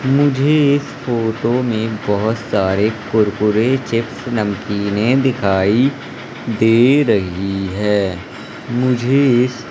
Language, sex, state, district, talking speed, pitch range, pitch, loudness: Hindi, male, Madhya Pradesh, Umaria, 100 wpm, 105-125 Hz, 115 Hz, -16 LUFS